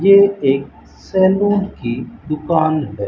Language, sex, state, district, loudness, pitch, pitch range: Hindi, female, Rajasthan, Bikaner, -16 LUFS, 155 Hz, 135-195 Hz